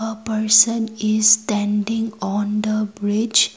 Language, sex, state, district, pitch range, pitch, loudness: English, female, Assam, Kamrup Metropolitan, 210-220 Hz, 215 Hz, -18 LUFS